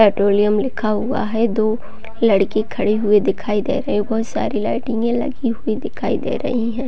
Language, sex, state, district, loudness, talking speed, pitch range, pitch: Hindi, female, Chhattisgarh, Raigarh, -19 LUFS, 185 wpm, 210-235 Hz, 220 Hz